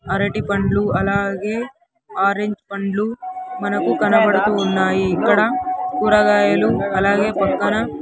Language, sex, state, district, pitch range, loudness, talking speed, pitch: Telugu, male, Andhra Pradesh, Sri Satya Sai, 195-225 Hz, -18 LUFS, 90 wpm, 200 Hz